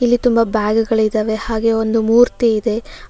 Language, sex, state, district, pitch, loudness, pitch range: Kannada, female, Karnataka, Bangalore, 225 Hz, -16 LUFS, 220-230 Hz